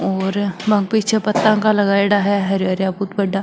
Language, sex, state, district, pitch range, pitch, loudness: Marwari, female, Rajasthan, Nagaur, 195-210 Hz, 200 Hz, -17 LUFS